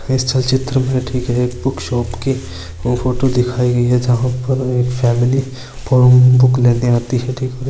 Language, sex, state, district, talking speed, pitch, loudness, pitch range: Marwari, male, Rajasthan, Churu, 170 wpm, 125 Hz, -15 LUFS, 125-130 Hz